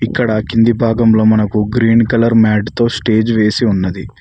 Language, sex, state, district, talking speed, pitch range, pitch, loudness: Telugu, male, Telangana, Mahabubabad, 155 wpm, 105-115 Hz, 110 Hz, -13 LUFS